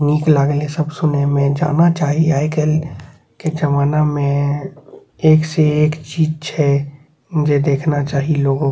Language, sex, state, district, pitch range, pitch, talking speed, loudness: Maithili, male, Bihar, Saharsa, 145-155 Hz, 150 Hz, 145 wpm, -16 LUFS